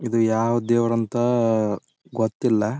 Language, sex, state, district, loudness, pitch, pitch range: Kannada, male, Karnataka, Belgaum, -22 LUFS, 115 Hz, 110-120 Hz